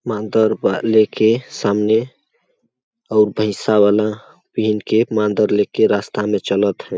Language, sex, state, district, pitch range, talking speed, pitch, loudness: Awadhi, male, Chhattisgarh, Balrampur, 105-110 Hz, 155 wpm, 110 Hz, -17 LUFS